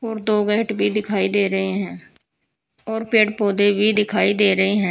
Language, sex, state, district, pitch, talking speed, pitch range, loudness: Hindi, female, Uttar Pradesh, Saharanpur, 205 Hz, 195 wpm, 200-215 Hz, -18 LUFS